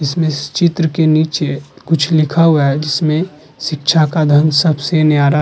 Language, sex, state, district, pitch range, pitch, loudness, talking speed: Hindi, male, Uttar Pradesh, Muzaffarnagar, 150-160 Hz, 155 Hz, -13 LUFS, 190 wpm